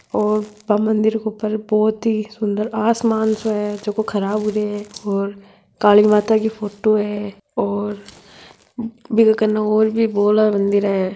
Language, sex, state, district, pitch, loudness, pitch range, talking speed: Marwari, female, Rajasthan, Nagaur, 215 Hz, -18 LUFS, 205-220 Hz, 160 wpm